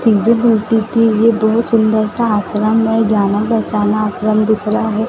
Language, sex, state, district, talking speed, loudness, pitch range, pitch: Hindi, female, Maharashtra, Gondia, 165 wpm, -14 LUFS, 215-225 Hz, 220 Hz